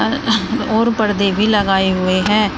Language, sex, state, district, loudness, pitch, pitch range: Hindi, female, Uttar Pradesh, Shamli, -15 LUFS, 210 Hz, 195-225 Hz